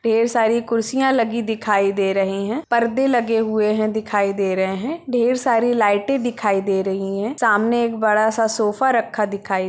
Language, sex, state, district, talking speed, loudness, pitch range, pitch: Hindi, female, Bihar, Purnia, 180 wpm, -19 LUFS, 200-235 Hz, 220 Hz